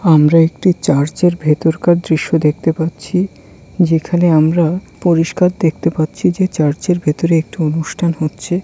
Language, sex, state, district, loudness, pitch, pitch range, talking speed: Bengali, male, West Bengal, Kolkata, -15 LUFS, 165 Hz, 155-175 Hz, 125 wpm